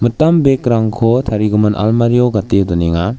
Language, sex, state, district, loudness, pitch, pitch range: Garo, male, Meghalaya, West Garo Hills, -13 LUFS, 115 Hz, 105-120 Hz